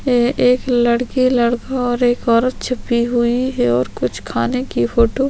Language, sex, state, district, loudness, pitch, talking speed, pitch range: Hindi, female, Chhattisgarh, Sukma, -17 LUFS, 240 Hz, 195 wpm, 235-255 Hz